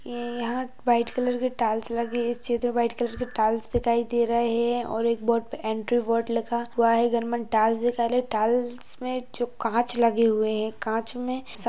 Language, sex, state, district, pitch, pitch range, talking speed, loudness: Hindi, female, Goa, North and South Goa, 235 Hz, 230-240 Hz, 225 wpm, -25 LUFS